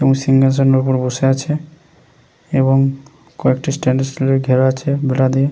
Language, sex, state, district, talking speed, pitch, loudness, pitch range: Bengali, male, West Bengal, Paschim Medinipur, 140 wpm, 135 Hz, -16 LUFS, 130-140 Hz